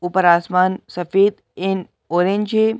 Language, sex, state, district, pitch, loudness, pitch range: Hindi, male, Madhya Pradesh, Bhopal, 190 Hz, -18 LUFS, 180-205 Hz